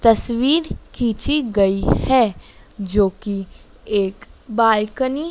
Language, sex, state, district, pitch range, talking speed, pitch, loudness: Hindi, female, Madhya Pradesh, Dhar, 200-255 Hz, 100 wpm, 220 Hz, -19 LUFS